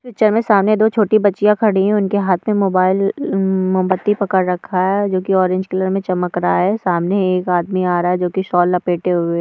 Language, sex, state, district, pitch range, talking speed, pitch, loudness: Hindi, female, Andhra Pradesh, Guntur, 180-205 Hz, 215 wpm, 190 Hz, -16 LUFS